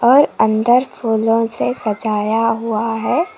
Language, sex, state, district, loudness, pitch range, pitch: Hindi, female, Karnataka, Koppal, -16 LUFS, 220-235 Hz, 225 Hz